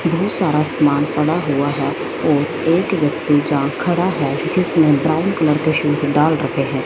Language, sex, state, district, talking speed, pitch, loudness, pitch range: Hindi, female, Punjab, Fazilka, 175 wpm, 150 Hz, -17 LUFS, 145-170 Hz